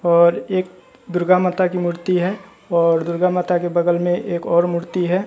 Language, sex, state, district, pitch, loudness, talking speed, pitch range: Hindi, male, Bihar, West Champaran, 180 Hz, -18 LUFS, 195 wpm, 175-185 Hz